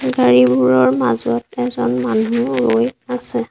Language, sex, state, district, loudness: Assamese, female, Assam, Sonitpur, -16 LUFS